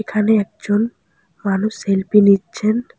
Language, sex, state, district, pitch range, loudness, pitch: Bengali, female, West Bengal, Alipurduar, 195-215 Hz, -17 LUFS, 205 Hz